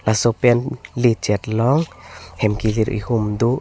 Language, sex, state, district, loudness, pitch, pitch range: Karbi, male, Assam, Karbi Anglong, -19 LUFS, 110 Hz, 105-120 Hz